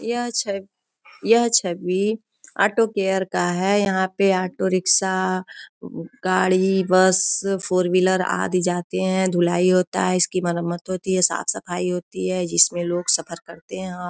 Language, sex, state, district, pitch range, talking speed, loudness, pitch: Hindi, female, Uttar Pradesh, Gorakhpur, 180-195 Hz, 150 wpm, -20 LUFS, 185 Hz